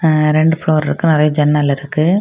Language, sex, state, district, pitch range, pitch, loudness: Tamil, female, Tamil Nadu, Kanyakumari, 150-160 Hz, 155 Hz, -14 LUFS